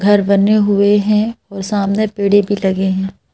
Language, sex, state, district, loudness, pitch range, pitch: Hindi, female, Madhya Pradesh, Bhopal, -14 LUFS, 195-205 Hz, 205 Hz